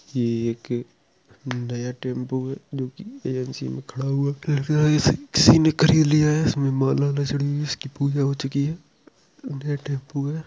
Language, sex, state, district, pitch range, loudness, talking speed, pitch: Hindi, male, Uttar Pradesh, Jalaun, 130-150 Hz, -23 LUFS, 190 wpm, 140 Hz